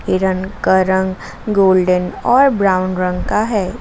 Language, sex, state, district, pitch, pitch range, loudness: Hindi, female, Jharkhand, Garhwa, 190 Hz, 185-200 Hz, -15 LUFS